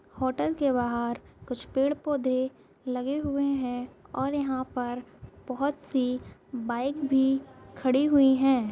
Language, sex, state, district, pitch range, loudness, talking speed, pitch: Hindi, female, Maharashtra, Aurangabad, 250-275 Hz, -28 LUFS, 135 wpm, 260 Hz